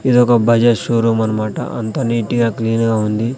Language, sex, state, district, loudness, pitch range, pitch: Telugu, male, Andhra Pradesh, Sri Satya Sai, -16 LUFS, 115-120 Hz, 115 Hz